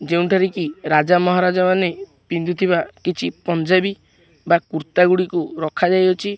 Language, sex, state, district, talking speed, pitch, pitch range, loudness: Odia, male, Odisha, Khordha, 120 wpm, 180 Hz, 170-185 Hz, -18 LUFS